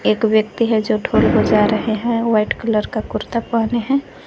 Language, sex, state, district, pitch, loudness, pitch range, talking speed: Hindi, female, Jharkhand, Garhwa, 225 Hz, -17 LUFS, 215-230 Hz, 195 wpm